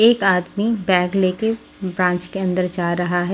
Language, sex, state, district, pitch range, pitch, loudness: Hindi, female, Haryana, Jhajjar, 180-200 Hz, 185 Hz, -19 LUFS